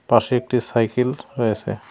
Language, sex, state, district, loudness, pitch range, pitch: Bengali, male, West Bengal, Cooch Behar, -21 LUFS, 115-125 Hz, 120 Hz